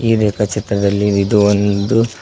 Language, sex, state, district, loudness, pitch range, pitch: Kannada, male, Karnataka, Koppal, -15 LUFS, 100-110 Hz, 105 Hz